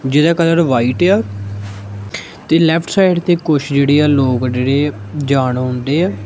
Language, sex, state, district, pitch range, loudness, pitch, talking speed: Punjabi, male, Punjab, Kapurthala, 125-165 Hz, -14 LUFS, 140 Hz, 175 wpm